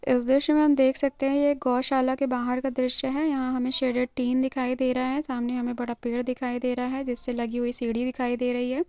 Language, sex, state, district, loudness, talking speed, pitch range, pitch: Hindi, female, Andhra Pradesh, Krishna, -26 LUFS, 250 wpm, 245-265 Hz, 255 Hz